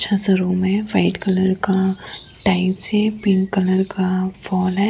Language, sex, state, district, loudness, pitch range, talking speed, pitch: Hindi, female, Gujarat, Valsad, -19 LUFS, 185-200 Hz, 170 wpm, 190 Hz